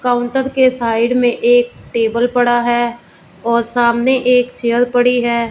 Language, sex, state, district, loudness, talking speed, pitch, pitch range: Hindi, female, Punjab, Fazilka, -14 LUFS, 150 wpm, 240 Hz, 235-245 Hz